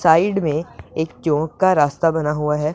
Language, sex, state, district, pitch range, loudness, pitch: Hindi, female, Punjab, Pathankot, 150-165 Hz, -19 LUFS, 160 Hz